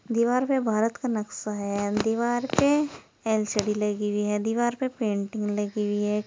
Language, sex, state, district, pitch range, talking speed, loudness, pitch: Hindi, female, Uttar Pradesh, Saharanpur, 210-240 Hz, 180 wpm, -26 LUFS, 215 Hz